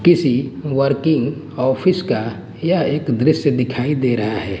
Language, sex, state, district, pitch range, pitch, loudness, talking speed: Hindi, male, Gujarat, Gandhinagar, 125-150 Hz, 135 Hz, -18 LUFS, 145 wpm